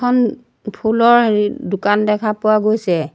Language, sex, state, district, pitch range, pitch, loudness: Assamese, female, Assam, Sonitpur, 210-225 Hz, 215 Hz, -16 LUFS